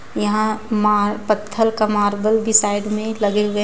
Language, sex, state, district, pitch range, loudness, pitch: Hindi, female, Jharkhand, Ranchi, 210-215 Hz, -18 LUFS, 210 Hz